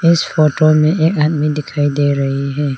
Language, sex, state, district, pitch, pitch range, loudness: Hindi, female, Arunachal Pradesh, Lower Dibang Valley, 150 Hz, 145-155 Hz, -14 LUFS